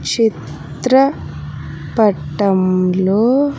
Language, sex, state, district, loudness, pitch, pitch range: Telugu, female, Andhra Pradesh, Sri Satya Sai, -15 LUFS, 200 Hz, 180-230 Hz